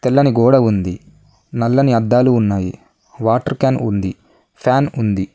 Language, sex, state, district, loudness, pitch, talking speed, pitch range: Telugu, male, Telangana, Mahabubabad, -16 LUFS, 120 Hz, 125 wpm, 100-130 Hz